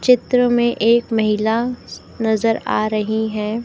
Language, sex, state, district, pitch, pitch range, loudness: Hindi, female, Madhya Pradesh, Dhar, 225 Hz, 220-240 Hz, -18 LUFS